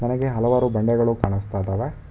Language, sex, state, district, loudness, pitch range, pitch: Kannada, male, Karnataka, Bangalore, -22 LUFS, 100-125 Hz, 115 Hz